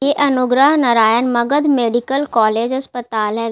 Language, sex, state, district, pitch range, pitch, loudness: Hindi, female, Bihar, Gaya, 230-275 Hz, 245 Hz, -15 LUFS